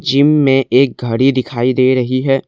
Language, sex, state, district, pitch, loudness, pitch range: Hindi, male, Assam, Kamrup Metropolitan, 130 Hz, -13 LUFS, 125-135 Hz